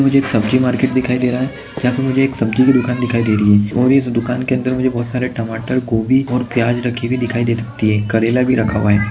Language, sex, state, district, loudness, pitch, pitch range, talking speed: Hindi, male, Chhattisgarh, Sarguja, -16 LUFS, 125 Hz, 115-130 Hz, 265 wpm